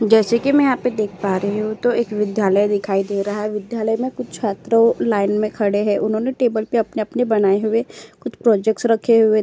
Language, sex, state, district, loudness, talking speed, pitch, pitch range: Hindi, female, Uttar Pradesh, Hamirpur, -18 LUFS, 225 wpm, 215 Hz, 205-235 Hz